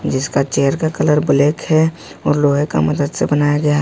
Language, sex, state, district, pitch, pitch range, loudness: Hindi, male, Jharkhand, Ranchi, 145 Hz, 140-150 Hz, -16 LUFS